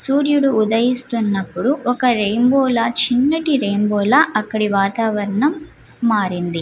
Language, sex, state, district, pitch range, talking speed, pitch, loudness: Telugu, female, Andhra Pradesh, Guntur, 205-260 Hz, 110 wpm, 230 Hz, -17 LUFS